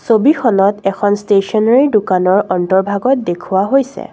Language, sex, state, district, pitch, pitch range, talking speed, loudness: Assamese, female, Assam, Kamrup Metropolitan, 205 Hz, 190-235 Hz, 100 wpm, -13 LUFS